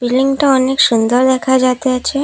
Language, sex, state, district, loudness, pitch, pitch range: Bengali, female, Assam, Kamrup Metropolitan, -13 LUFS, 260 Hz, 250-265 Hz